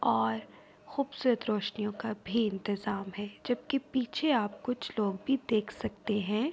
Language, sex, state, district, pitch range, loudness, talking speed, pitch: Urdu, female, Andhra Pradesh, Anantapur, 205-250 Hz, -32 LUFS, 145 wpm, 215 Hz